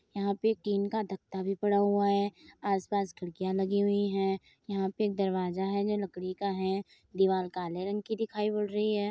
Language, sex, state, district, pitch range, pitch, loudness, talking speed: Hindi, female, Uttar Pradesh, Muzaffarnagar, 190-205 Hz, 200 Hz, -31 LUFS, 205 wpm